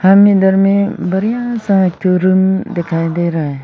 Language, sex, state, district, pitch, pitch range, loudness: Hindi, female, Arunachal Pradesh, Lower Dibang Valley, 190 Hz, 175-200 Hz, -13 LUFS